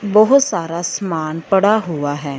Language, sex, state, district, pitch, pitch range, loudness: Hindi, female, Punjab, Fazilka, 170 Hz, 160-210 Hz, -16 LUFS